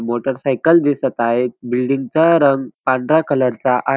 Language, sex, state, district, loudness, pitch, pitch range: Marathi, male, Maharashtra, Dhule, -16 LUFS, 135 Hz, 125-145 Hz